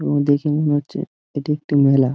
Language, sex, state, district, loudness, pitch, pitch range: Bengali, male, West Bengal, Dakshin Dinajpur, -19 LUFS, 145 Hz, 140-150 Hz